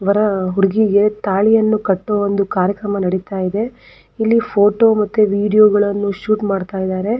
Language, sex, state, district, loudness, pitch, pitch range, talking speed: Kannada, female, Karnataka, Belgaum, -16 LUFS, 205 Hz, 195-215 Hz, 125 wpm